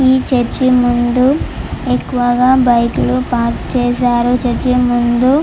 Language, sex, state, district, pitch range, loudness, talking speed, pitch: Telugu, female, Andhra Pradesh, Chittoor, 240-255 Hz, -13 LUFS, 110 wpm, 245 Hz